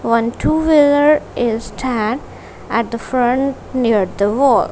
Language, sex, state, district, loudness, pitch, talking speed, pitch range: English, female, Punjab, Kapurthala, -16 LUFS, 245 Hz, 140 wpm, 230-275 Hz